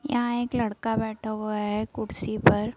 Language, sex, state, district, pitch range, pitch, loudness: Hindi, female, Bihar, Saran, 215-240 Hz, 220 Hz, -27 LUFS